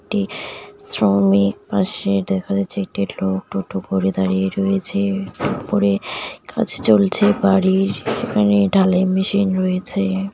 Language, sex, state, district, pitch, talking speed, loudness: Bengali, female, West Bengal, Jalpaiguri, 100 Hz, 110 wpm, -19 LUFS